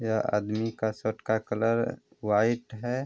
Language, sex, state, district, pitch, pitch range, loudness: Hindi, male, Bihar, Vaishali, 110 Hz, 110-115 Hz, -29 LUFS